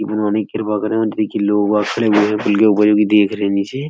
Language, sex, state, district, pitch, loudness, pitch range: Hindi, male, Uttar Pradesh, Etah, 105 Hz, -16 LUFS, 105-110 Hz